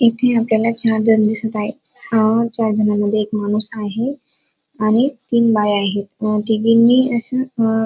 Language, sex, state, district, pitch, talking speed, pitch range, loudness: Marathi, female, Maharashtra, Dhule, 225 Hz, 135 wpm, 215-235 Hz, -17 LUFS